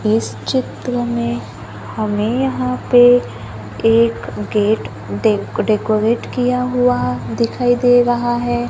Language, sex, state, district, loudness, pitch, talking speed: Hindi, female, Maharashtra, Gondia, -16 LUFS, 215 Hz, 110 wpm